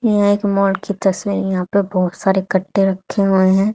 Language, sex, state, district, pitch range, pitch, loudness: Hindi, female, Haryana, Charkhi Dadri, 190-200 Hz, 195 Hz, -17 LUFS